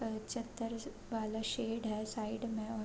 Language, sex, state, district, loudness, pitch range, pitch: Hindi, female, Chhattisgarh, Korba, -40 LUFS, 220-230 Hz, 225 Hz